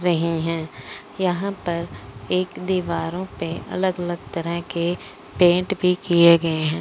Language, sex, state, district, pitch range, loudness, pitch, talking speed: Hindi, female, Punjab, Fazilka, 165-180 Hz, -22 LUFS, 170 Hz, 140 wpm